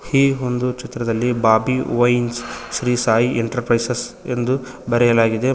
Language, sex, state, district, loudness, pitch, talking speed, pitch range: Kannada, male, Karnataka, Koppal, -19 LUFS, 120 Hz, 120 wpm, 115-125 Hz